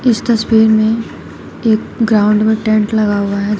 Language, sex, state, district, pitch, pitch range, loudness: Hindi, female, Uttar Pradesh, Shamli, 220 Hz, 210-225 Hz, -13 LUFS